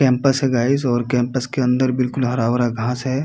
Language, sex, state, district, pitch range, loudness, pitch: Hindi, male, Uttar Pradesh, Muzaffarnagar, 120-130 Hz, -19 LUFS, 125 Hz